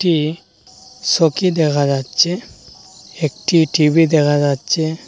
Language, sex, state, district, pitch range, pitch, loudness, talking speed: Bengali, male, Assam, Hailakandi, 145-170 Hz, 160 Hz, -16 LUFS, 95 wpm